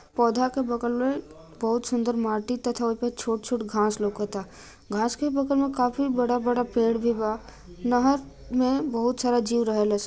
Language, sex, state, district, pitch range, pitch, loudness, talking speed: Bhojpuri, female, Bihar, Gopalganj, 220-245 Hz, 240 Hz, -26 LUFS, 160 wpm